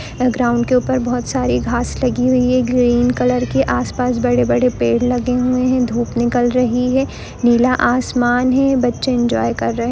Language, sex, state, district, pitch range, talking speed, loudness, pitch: Hindi, female, Chhattisgarh, Bilaspur, 235-250 Hz, 175 wpm, -16 LUFS, 245 Hz